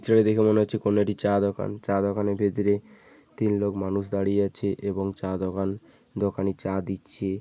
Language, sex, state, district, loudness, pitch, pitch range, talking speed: Bengali, male, West Bengal, Paschim Medinipur, -26 LUFS, 100 Hz, 95-105 Hz, 185 wpm